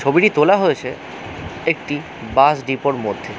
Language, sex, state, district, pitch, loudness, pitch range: Bengali, male, West Bengal, Kolkata, 140 Hz, -17 LUFS, 135-150 Hz